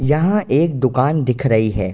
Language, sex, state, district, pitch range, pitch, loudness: Hindi, male, Uttar Pradesh, Ghazipur, 115-150 Hz, 130 Hz, -17 LUFS